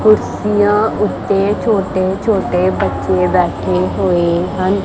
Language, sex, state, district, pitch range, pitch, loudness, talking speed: Punjabi, female, Punjab, Kapurthala, 180-205 Hz, 190 Hz, -15 LUFS, 100 wpm